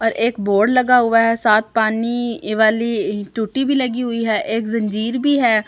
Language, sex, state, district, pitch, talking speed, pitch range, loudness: Hindi, female, Delhi, New Delhi, 230 Hz, 190 wpm, 215-240 Hz, -17 LUFS